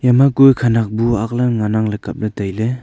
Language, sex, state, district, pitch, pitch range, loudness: Wancho, male, Arunachal Pradesh, Longding, 115 Hz, 110-125 Hz, -16 LUFS